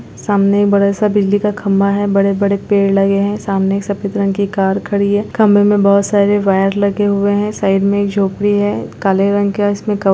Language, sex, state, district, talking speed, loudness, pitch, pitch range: Hindi, female, Uttar Pradesh, Jalaun, 240 wpm, -14 LUFS, 200 Hz, 195-205 Hz